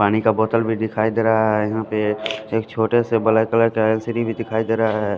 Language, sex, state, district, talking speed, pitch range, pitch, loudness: Hindi, male, Punjab, Fazilka, 255 wpm, 110-115 Hz, 110 Hz, -19 LUFS